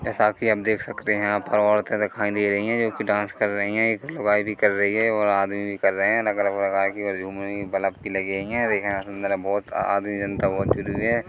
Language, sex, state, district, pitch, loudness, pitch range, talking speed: Hindi, male, Chhattisgarh, Korba, 105 Hz, -23 LUFS, 100-105 Hz, 280 wpm